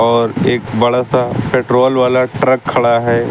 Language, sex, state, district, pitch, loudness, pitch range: Hindi, male, Uttar Pradesh, Lucknow, 125 Hz, -13 LUFS, 120-130 Hz